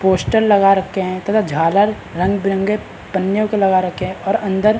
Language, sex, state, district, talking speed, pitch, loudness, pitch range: Hindi, male, Bihar, Madhepura, 185 wpm, 195 Hz, -17 LUFS, 185-210 Hz